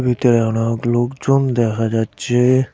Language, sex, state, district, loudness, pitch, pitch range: Bengali, male, West Bengal, Cooch Behar, -17 LUFS, 120 Hz, 115-125 Hz